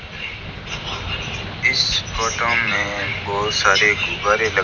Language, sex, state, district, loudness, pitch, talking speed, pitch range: Hindi, male, Rajasthan, Bikaner, -19 LUFS, 100 Hz, 105 wpm, 100-115 Hz